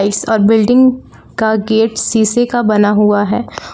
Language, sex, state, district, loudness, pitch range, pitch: Hindi, female, Jharkhand, Palamu, -12 LUFS, 210-235 Hz, 220 Hz